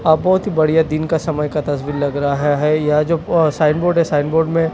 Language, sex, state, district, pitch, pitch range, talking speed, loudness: Hindi, male, Delhi, New Delhi, 155 Hz, 150-160 Hz, 240 wpm, -16 LUFS